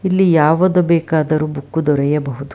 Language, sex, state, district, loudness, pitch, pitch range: Kannada, female, Karnataka, Bangalore, -15 LUFS, 155 Hz, 150-170 Hz